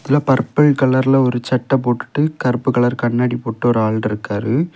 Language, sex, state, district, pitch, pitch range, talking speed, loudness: Tamil, male, Tamil Nadu, Kanyakumari, 125 Hz, 120-135 Hz, 150 wpm, -17 LUFS